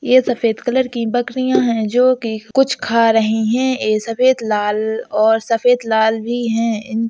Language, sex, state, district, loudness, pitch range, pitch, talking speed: Hindi, female, Uttar Pradesh, Hamirpur, -16 LUFS, 220-250 Hz, 230 Hz, 185 wpm